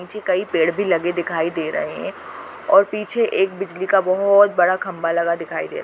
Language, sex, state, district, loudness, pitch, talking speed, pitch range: Hindi, female, Chhattisgarh, Bastar, -19 LUFS, 185 Hz, 225 wpm, 170-200 Hz